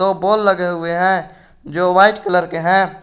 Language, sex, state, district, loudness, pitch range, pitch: Hindi, male, Jharkhand, Garhwa, -15 LUFS, 175-195 Hz, 185 Hz